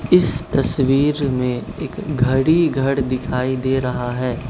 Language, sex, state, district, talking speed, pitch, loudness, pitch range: Hindi, male, Manipur, Imphal West, 135 wpm, 130 Hz, -19 LUFS, 125-140 Hz